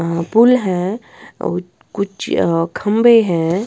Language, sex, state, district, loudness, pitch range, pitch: Hindi, female, Bihar, West Champaran, -16 LUFS, 170-220 Hz, 190 Hz